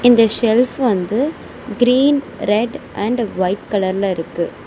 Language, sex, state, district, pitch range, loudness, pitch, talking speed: Tamil, female, Tamil Nadu, Chennai, 195-245 Hz, -17 LUFS, 225 Hz, 115 wpm